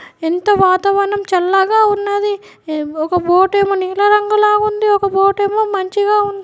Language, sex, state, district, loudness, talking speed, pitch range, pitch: Telugu, female, Telangana, Nalgonda, -14 LUFS, 160 wpm, 375-415 Hz, 400 Hz